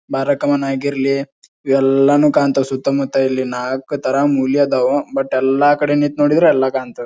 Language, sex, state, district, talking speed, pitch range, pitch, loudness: Kannada, male, Karnataka, Bijapur, 145 wpm, 135-145 Hz, 140 Hz, -16 LUFS